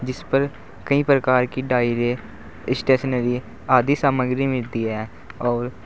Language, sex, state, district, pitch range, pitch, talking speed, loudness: Hindi, male, Uttar Pradesh, Saharanpur, 120-130 Hz, 125 Hz, 125 wpm, -21 LUFS